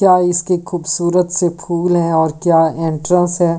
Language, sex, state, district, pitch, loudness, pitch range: Hindi, female, Delhi, New Delhi, 175 Hz, -15 LUFS, 165-180 Hz